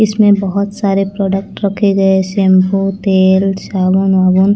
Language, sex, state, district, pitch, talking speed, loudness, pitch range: Hindi, female, Chandigarh, Chandigarh, 195 Hz, 120 wpm, -12 LUFS, 190-200 Hz